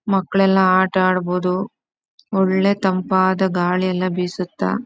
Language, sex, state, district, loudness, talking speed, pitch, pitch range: Kannada, female, Karnataka, Chamarajanagar, -18 LUFS, 100 wpm, 185 Hz, 185-195 Hz